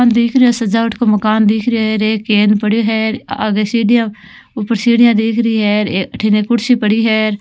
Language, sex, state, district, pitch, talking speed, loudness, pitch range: Marwari, female, Rajasthan, Nagaur, 220 Hz, 205 wpm, -13 LUFS, 210-235 Hz